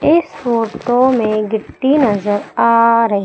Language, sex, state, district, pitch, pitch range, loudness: Hindi, female, Madhya Pradesh, Umaria, 230 Hz, 215-255 Hz, -14 LUFS